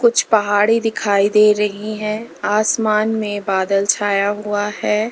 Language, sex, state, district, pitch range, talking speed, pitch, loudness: Hindi, female, Uttar Pradesh, Lalitpur, 205-215 Hz, 140 wpm, 210 Hz, -17 LUFS